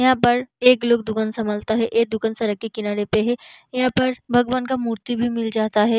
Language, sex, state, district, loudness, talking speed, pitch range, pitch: Hindi, female, Bihar, Samastipur, -21 LUFS, 230 wpm, 220-245 Hz, 230 Hz